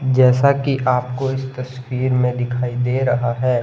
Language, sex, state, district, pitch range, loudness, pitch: Hindi, male, Himachal Pradesh, Shimla, 125-130 Hz, -18 LUFS, 130 Hz